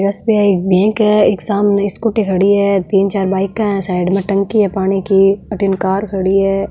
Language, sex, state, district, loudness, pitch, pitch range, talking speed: Marwari, female, Rajasthan, Nagaur, -14 LUFS, 195 Hz, 195-205 Hz, 225 wpm